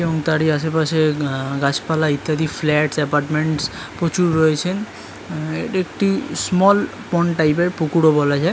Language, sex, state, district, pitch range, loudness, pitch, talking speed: Bengali, male, West Bengal, Kolkata, 150-170 Hz, -19 LUFS, 160 Hz, 135 wpm